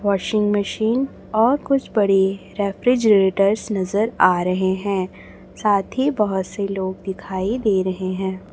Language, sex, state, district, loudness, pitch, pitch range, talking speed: Hindi, female, Chhattisgarh, Raipur, -20 LUFS, 200 Hz, 190-215 Hz, 135 wpm